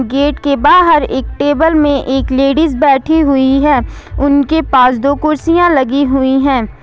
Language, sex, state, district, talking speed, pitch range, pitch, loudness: Hindi, female, Jharkhand, Ranchi, 160 wpm, 270-305 Hz, 280 Hz, -11 LUFS